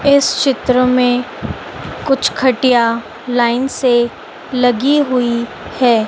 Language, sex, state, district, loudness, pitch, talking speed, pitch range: Hindi, female, Madhya Pradesh, Dhar, -15 LUFS, 250 Hz, 100 wpm, 240-265 Hz